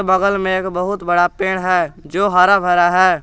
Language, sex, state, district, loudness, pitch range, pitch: Hindi, male, Jharkhand, Garhwa, -15 LUFS, 175-190 Hz, 185 Hz